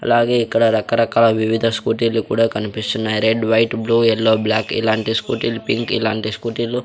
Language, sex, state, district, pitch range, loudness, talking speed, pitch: Telugu, male, Andhra Pradesh, Sri Satya Sai, 110-115 Hz, -17 LUFS, 160 wpm, 115 Hz